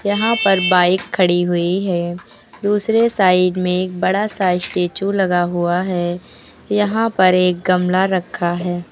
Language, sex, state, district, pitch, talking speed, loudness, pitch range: Hindi, female, Uttar Pradesh, Lucknow, 185 Hz, 150 wpm, -17 LUFS, 175-195 Hz